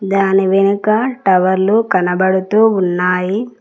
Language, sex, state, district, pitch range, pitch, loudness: Telugu, female, Telangana, Mahabubabad, 185-215 Hz, 195 Hz, -14 LUFS